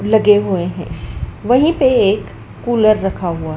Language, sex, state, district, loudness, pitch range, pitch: Hindi, female, Madhya Pradesh, Dhar, -14 LUFS, 185-235 Hz, 205 Hz